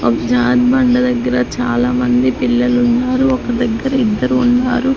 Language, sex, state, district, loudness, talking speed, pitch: Telugu, female, Andhra Pradesh, Sri Satya Sai, -14 LUFS, 130 wpm, 225 Hz